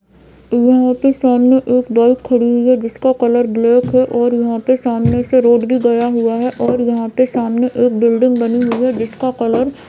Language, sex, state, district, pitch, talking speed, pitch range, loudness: Hindi, female, Jharkhand, Jamtara, 245 Hz, 190 wpm, 235-255 Hz, -14 LUFS